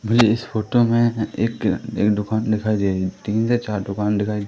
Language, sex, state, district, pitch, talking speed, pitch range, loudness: Hindi, male, Madhya Pradesh, Katni, 110 Hz, 200 wpm, 105-115 Hz, -20 LUFS